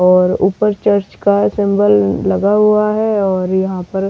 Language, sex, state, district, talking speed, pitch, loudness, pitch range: Hindi, female, Delhi, New Delhi, 160 wpm, 195 Hz, -14 LUFS, 185-205 Hz